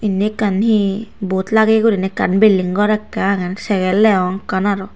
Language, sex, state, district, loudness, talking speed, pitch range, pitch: Chakma, female, Tripura, Unakoti, -16 LUFS, 170 wpm, 190-215 Hz, 200 Hz